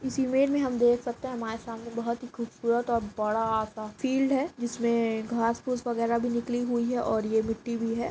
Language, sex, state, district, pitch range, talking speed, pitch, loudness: Hindi, female, Uttar Pradesh, Etah, 230-245 Hz, 220 wpm, 235 Hz, -28 LUFS